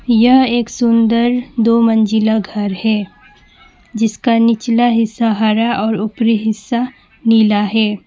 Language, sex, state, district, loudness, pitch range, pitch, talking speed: Hindi, female, West Bengal, Alipurduar, -14 LUFS, 220-235 Hz, 225 Hz, 120 wpm